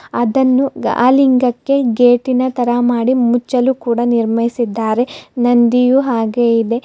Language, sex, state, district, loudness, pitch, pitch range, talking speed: Kannada, female, Karnataka, Bidar, -14 LUFS, 245 Hz, 235-255 Hz, 105 wpm